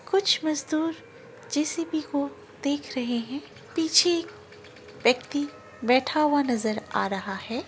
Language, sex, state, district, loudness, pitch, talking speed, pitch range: Angika, female, Bihar, Araria, -26 LUFS, 290 Hz, 115 wpm, 250-325 Hz